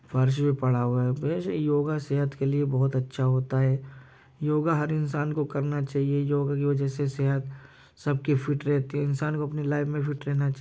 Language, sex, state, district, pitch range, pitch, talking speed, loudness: Hindi, male, Uttar Pradesh, Jyotiba Phule Nagar, 135-145 Hz, 140 Hz, 215 wpm, -27 LUFS